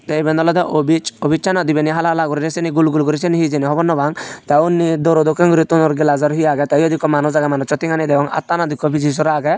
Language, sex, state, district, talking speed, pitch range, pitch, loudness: Chakma, male, Tripura, Unakoti, 270 wpm, 150-165 Hz, 155 Hz, -15 LUFS